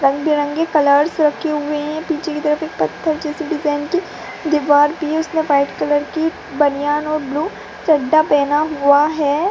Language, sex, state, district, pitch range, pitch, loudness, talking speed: Hindi, female, Bihar, Purnia, 290-315 Hz, 300 Hz, -17 LUFS, 170 wpm